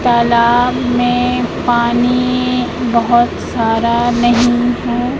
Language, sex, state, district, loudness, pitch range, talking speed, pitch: Hindi, female, Madhya Pradesh, Katni, -13 LUFS, 235-245 Hz, 80 wpm, 240 Hz